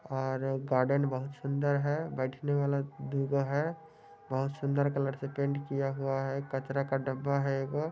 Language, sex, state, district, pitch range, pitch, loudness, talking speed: Hindi, male, Bihar, Muzaffarpur, 135-140 Hz, 140 Hz, -32 LUFS, 165 wpm